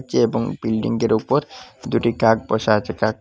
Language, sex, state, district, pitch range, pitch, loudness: Bengali, male, Assam, Hailakandi, 110-115 Hz, 110 Hz, -20 LUFS